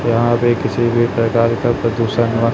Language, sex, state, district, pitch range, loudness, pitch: Hindi, male, Chhattisgarh, Raipur, 115-120 Hz, -16 LUFS, 115 Hz